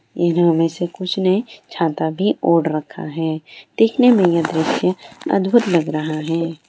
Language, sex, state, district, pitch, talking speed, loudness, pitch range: Hindi, female, Bihar, Sitamarhi, 170 Hz, 170 wpm, -18 LUFS, 160-190 Hz